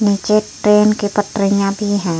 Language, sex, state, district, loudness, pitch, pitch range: Hindi, female, Uttar Pradesh, Jyotiba Phule Nagar, -15 LUFS, 205 Hz, 200-210 Hz